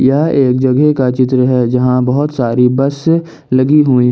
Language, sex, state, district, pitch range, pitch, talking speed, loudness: Hindi, male, Jharkhand, Ranchi, 125-145 Hz, 130 Hz, 190 wpm, -12 LUFS